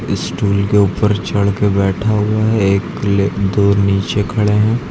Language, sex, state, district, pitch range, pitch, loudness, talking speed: Hindi, male, Uttar Pradesh, Lucknow, 100-105 Hz, 100 Hz, -15 LUFS, 160 wpm